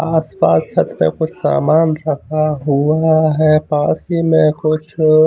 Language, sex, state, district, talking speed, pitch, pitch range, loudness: Hindi, male, Chandigarh, Chandigarh, 150 wpm, 155 Hz, 150-160 Hz, -15 LUFS